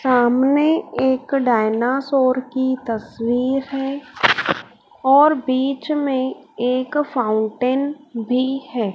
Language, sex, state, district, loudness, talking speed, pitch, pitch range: Hindi, female, Madhya Pradesh, Dhar, -19 LUFS, 85 wpm, 260 Hz, 245-275 Hz